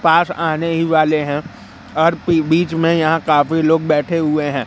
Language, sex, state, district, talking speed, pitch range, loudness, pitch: Hindi, male, Madhya Pradesh, Katni, 180 wpm, 155-165 Hz, -16 LUFS, 160 Hz